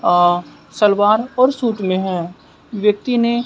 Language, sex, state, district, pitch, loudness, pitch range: Hindi, male, Bihar, West Champaran, 210 Hz, -17 LUFS, 185-235 Hz